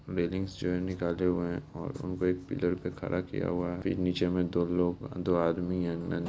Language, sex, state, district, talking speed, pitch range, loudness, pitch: Hindi, male, Bihar, Lakhisarai, 240 wpm, 85-90 Hz, -32 LUFS, 90 Hz